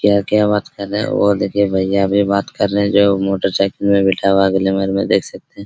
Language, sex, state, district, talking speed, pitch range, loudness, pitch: Hindi, male, Bihar, Araria, 265 wpm, 95-100 Hz, -16 LUFS, 100 Hz